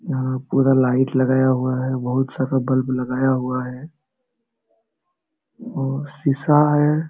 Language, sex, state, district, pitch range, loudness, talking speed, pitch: Hindi, male, Jharkhand, Sahebganj, 130-150 Hz, -20 LUFS, 125 wpm, 135 Hz